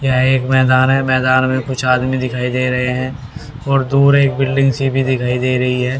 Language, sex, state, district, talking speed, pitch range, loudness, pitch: Hindi, male, Haryana, Rohtak, 220 wpm, 125-135 Hz, -15 LUFS, 130 Hz